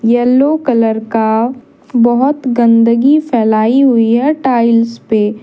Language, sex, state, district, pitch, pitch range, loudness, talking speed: Hindi, female, Jharkhand, Deoghar, 235 Hz, 225-260 Hz, -11 LUFS, 110 wpm